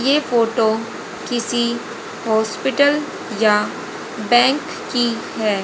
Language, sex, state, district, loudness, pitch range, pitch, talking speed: Hindi, female, Haryana, Rohtak, -19 LUFS, 220-260 Hz, 235 Hz, 85 wpm